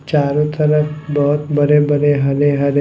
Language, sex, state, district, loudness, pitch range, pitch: Hindi, male, Chhattisgarh, Raipur, -15 LUFS, 145-150 Hz, 145 Hz